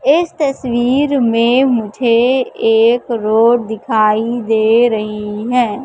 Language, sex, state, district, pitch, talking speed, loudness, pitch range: Hindi, female, Madhya Pradesh, Katni, 235 Hz, 105 wpm, -14 LUFS, 220-250 Hz